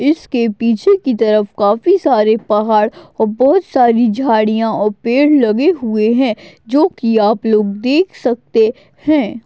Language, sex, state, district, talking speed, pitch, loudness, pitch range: Hindi, female, Maharashtra, Aurangabad, 145 wpm, 230 Hz, -14 LUFS, 215-275 Hz